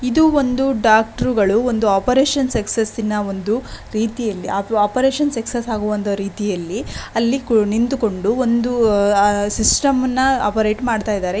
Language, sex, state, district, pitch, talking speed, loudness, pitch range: Kannada, female, Karnataka, Shimoga, 225 Hz, 115 wpm, -18 LUFS, 205-250 Hz